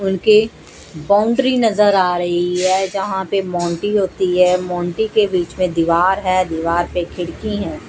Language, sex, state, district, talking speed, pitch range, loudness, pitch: Hindi, female, Odisha, Malkangiri, 160 wpm, 175-205 Hz, -17 LUFS, 185 Hz